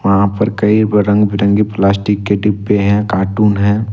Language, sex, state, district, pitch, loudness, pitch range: Hindi, male, Jharkhand, Ranchi, 105 Hz, -13 LUFS, 100-105 Hz